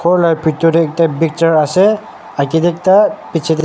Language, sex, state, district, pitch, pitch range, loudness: Nagamese, male, Nagaland, Dimapur, 165 Hz, 160-175 Hz, -13 LUFS